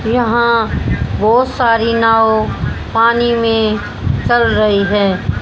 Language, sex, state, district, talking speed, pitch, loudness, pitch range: Hindi, female, Haryana, Jhajjar, 100 wpm, 225 Hz, -13 LUFS, 215-235 Hz